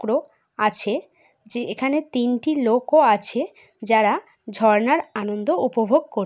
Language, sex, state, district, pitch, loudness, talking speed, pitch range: Bengali, female, West Bengal, Jhargram, 240 Hz, -20 LUFS, 125 wpm, 215-295 Hz